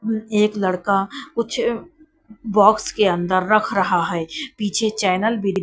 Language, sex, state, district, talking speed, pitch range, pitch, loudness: Hindi, female, Bihar, Katihar, 130 wpm, 190-225 Hz, 210 Hz, -19 LUFS